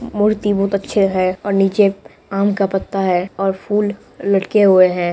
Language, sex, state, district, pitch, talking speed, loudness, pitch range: Hindi, female, Bihar, Purnia, 195 Hz, 175 wpm, -16 LUFS, 190-205 Hz